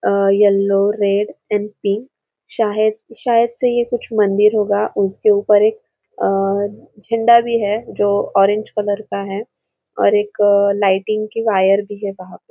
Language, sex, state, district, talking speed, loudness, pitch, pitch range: Hindi, female, Maharashtra, Aurangabad, 150 wpm, -16 LUFS, 205 Hz, 200-215 Hz